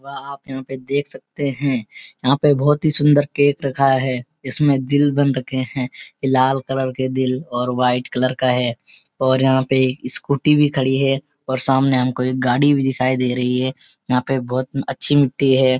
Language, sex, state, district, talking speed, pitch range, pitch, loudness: Hindi, male, Uttarakhand, Uttarkashi, 200 wpm, 130-140 Hz, 130 Hz, -18 LUFS